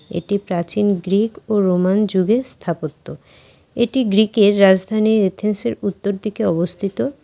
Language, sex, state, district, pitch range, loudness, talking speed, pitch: Bengali, female, West Bengal, Cooch Behar, 180-215 Hz, -18 LUFS, 115 wpm, 200 Hz